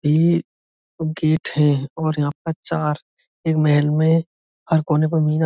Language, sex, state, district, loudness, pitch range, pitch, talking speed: Hindi, male, Uttar Pradesh, Budaun, -20 LUFS, 150-160 Hz, 155 Hz, 145 wpm